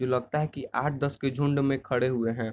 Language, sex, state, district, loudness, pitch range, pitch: Hindi, male, Bihar, Sitamarhi, -28 LUFS, 125-145 Hz, 135 Hz